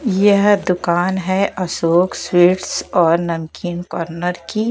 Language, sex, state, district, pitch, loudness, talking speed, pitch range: Hindi, female, Bihar, West Champaran, 180 Hz, -17 LUFS, 115 wpm, 170-195 Hz